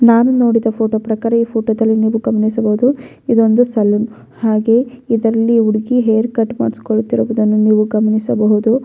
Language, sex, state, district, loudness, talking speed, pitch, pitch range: Kannada, female, Karnataka, Bellary, -14 LUFS, 120 wpm, 225 Hz, 220-235 Hz